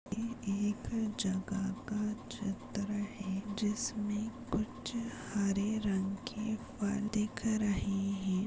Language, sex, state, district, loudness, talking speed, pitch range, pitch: Hindi, female, Goa, North and South Goa, -36 LUFS, 105 wpm, 200-215 Hz, 210 Hz